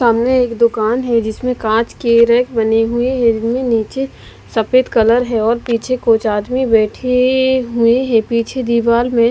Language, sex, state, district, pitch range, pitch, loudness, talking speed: Hindi, female, Maharashtra, Mumbai Suburban, 225-250 Hz, 235 Hz, -14 LUFS, 160 wpm